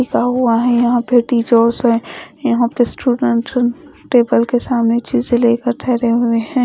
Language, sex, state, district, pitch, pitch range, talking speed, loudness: Hindi, female, Odisha, Khordha, 240 Hz, 235-245 Hz, 160 wpm, -15 LUFS